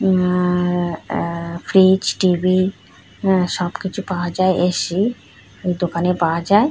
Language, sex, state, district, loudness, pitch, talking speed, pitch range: Bengali, female, West Bengal, North 24 Parganas, -18 LUFS, 180 Hz, 100 wpm, 175-190 Hz